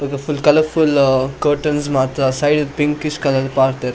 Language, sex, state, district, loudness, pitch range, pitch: Tulu, male, Karnataka, Dakshina Kannada, -16 LUFS, 135-150 Hz, 145 Hz